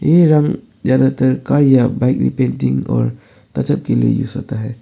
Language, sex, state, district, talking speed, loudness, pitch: Hindi, male, Arunachal Pradesh, Papum Pare, 185 wpm, -15 LUFS, 125 Hz